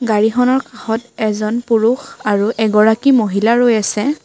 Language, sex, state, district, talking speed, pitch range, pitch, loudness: Assamese, female, Assam, Kamrup Metropolitan, 125 wpm, 215-250 Hz, 225 Hz, -15 LUFS